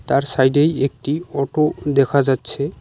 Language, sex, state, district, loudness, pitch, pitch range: Bengali, male, West Bengal, Cooch Behar, -18 LUFS, 140 Hz, 135-150 Hz